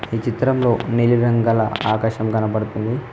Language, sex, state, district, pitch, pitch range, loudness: Telugu, male, Telangana, Mahabubabad, 115 Hz, 110-120 Hz, -19 LUFS